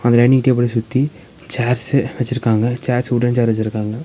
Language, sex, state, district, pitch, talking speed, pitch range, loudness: Tamil, male, Tamil Nadu, Nilgiris, 120 Hz, 150 wpm, 115-125 Hz, -17 LUFS